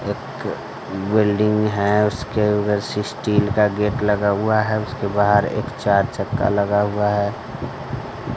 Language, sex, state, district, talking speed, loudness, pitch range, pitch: Hindi, male, Bihar, West Champaran, 130 wpm, -20 LUFS, 100-105 Hz, 105 Hz